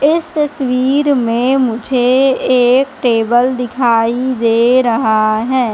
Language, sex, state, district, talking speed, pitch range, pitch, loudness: Hindi, female, Madhya Pradesh, Katni, 105 wpm, 235-265 Hz, 250 Hz, -13 LUFS